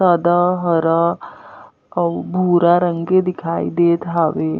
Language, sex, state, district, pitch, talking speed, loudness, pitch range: Chhattisgarhi, female, Chhattisgarh, Jashpur, 170 Hz, 115 wpm, -17 LUFS, 165-180 Hz